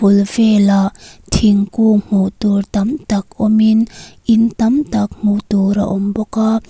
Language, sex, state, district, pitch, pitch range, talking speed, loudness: Mizo, female, Mizoram, Aizawl, 210 Hz, 200-220 Hz, 150 wpm, -14 LUFS